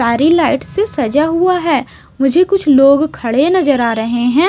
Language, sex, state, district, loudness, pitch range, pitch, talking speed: Hindi, female, Maharashtra, Mumbai Suburban, -13 LUFS, 255-335 Hz, 290 Hz, 185 wpm